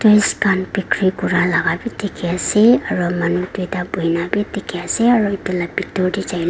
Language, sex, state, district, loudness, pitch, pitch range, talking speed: Nagamese, female, Nagaland, Dimapur, -18 LUFS, 185 Hz, 175-205 Hz, 185 wpm